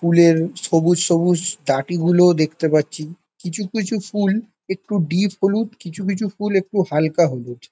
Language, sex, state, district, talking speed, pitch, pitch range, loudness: Bengali, male, West Bengal, Jalpaiguri, 150 wpm, 175 Hz, 165-200 Hz, -19 LUFS